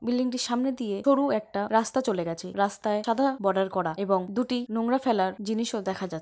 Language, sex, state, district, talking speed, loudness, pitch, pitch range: Bengali, female, West Bengal, Paschim Medinipur, 195 wpm, -27 LUFS, 220 Hz, 195-245 Hz